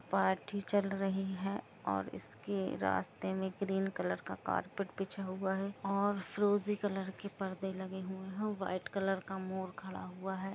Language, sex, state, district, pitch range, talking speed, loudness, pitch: Hindi, female, Jharkhand, Jamtara, 190-200 Hz, 170 wpm, -37 LUFS, 195 Hz